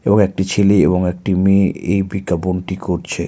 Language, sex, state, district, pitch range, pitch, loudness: Bengali, male, West Bengal, Malda, 90-100 Hz, 95 Hz, -16 LUFS